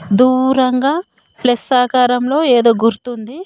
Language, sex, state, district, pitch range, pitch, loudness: Telugu, female, Telangana, Komaram Bheem, 240-260 Hz, 250 Hz, -14 LUFS